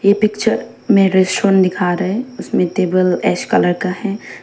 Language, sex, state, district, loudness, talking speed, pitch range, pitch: Hindi, female, Arunachal Pradesh, Papum Pare, -16 LUFS, 175 wpm, 185-210 Hz, 195 Hz